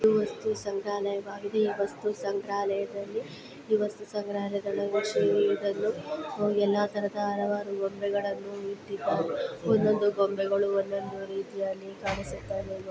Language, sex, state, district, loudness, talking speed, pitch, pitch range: Kannada, female, Karnataka, Belgaum, -30 LUFS, 100 wpm, 205 Hz, 200-210 Hz